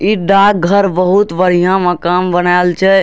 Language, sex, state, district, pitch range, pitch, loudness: Maithili, male, Bihar, Darbhanga, 180-195 Hz, 185 Hz, -11 LUFS